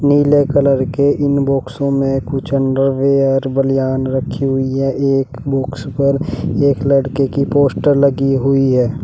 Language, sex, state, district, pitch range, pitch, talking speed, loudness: Hindi, male, Uttar Pradesh, Shamli, 135-140 Hz, 135 Hz, 145 wpm, -15 LUFS